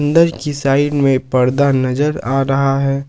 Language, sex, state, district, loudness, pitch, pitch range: Hindi, male, Jharkhand, Ranchi, -15 LUFS, 140 Hz, 135-145 Hz